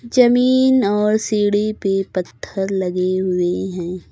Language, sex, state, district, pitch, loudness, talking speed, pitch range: Hindi, female, Uttar Pradesh, Lucknow, 195 Hz, -18 LUFS, 115 wpm, 185-215 Hz